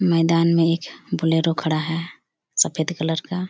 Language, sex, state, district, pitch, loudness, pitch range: Hindi, female, Chhattisgarh, Bastar, 165 Hz, -21 LUFS, 160-170 Hz